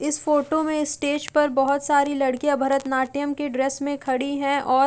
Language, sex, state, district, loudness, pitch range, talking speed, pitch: Hindi, female, Uttar Pradesh, Jalaun, -23 LUFS, 270-290 Hz, 195 wpm, 280 Hz